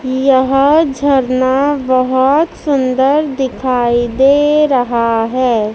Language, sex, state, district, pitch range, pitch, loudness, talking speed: Hindi, female, Madhya Pradesh, Dhar, 255-280 Hz, 265 Hz, -12 LUFS, 85 wpm